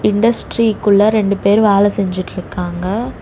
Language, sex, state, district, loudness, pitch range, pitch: Tamil, female, Tamil Nadu, Chennai, -14 LUFS, 200-215 Hz, 205 Hz